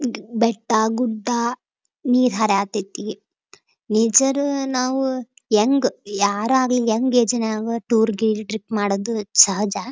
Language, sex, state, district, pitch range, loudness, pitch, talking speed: Kannada, female, Karnataka, Dharwad, 215-250 Hz, -20 LUFS, 225 Hz, 105 wpm